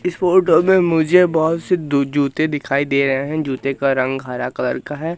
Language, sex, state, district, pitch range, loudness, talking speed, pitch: Hindi, male, Madhya Pradesh, Katni, 140-170 Hz, -17 LUFS, 220 wpm, 150 Hz